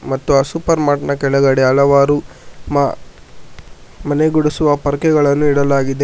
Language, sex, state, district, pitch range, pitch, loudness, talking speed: Kannada, male, Karnataka, Bangalore, 140-150 Hz, 140 Hz, -14 LUFS, 110 wpm